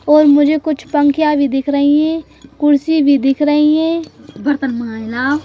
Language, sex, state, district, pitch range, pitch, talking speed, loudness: Hindi, female, Madhya Pradesh, Bhopal, 280-305 Hz, 290 Hz, 175 wpm, -14 LUFS